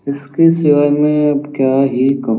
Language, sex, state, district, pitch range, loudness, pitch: Hindi, male, Uttar Pradesh, Varanasi, 135-150 Hz, -13 LUFS, 140 Hz